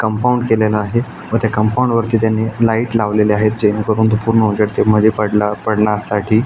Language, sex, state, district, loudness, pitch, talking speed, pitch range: Marathi, male, Maharashtra, Aurangabad, -15 LUFS, 110 Hz, 185 wpm, 105-115 Hz